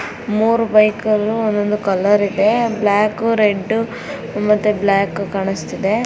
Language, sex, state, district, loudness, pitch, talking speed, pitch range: Kannada, female, Karnataka, Shimoga, -16 LUFS, 210 Hz, 120 wpm, 200-220 Hz